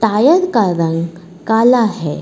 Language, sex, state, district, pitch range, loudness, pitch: Hindi, female, Uttar Pradesh, Lucknow, 170-235 Hz, -14 LUFS, 215 Hz